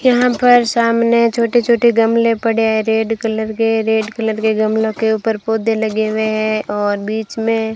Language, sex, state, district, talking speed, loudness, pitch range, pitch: Hindi, female, Rajasthan, Bikaner, 195 wpm, -15 LUFS, 220-230 Hz, 225 Hz